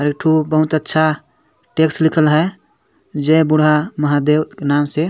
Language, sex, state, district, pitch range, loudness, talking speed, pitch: Sadri, male, Chhattisgarh, Jashpur, 150-160 Hz, -15 LUFS, 165 wpm, 155 Hz